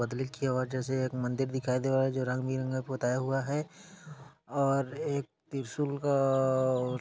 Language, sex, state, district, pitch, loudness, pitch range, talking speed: Hindi, male, Chhattisgarh, Kabirdham, 130 Hz, -31 LUFS, 130-140 Hz, 160 wpm